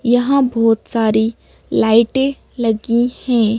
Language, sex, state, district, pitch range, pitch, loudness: Hindi, female, Madhya Pradesh, Bhopal, 225-250 Hz, 230 Hz, -16 LUFS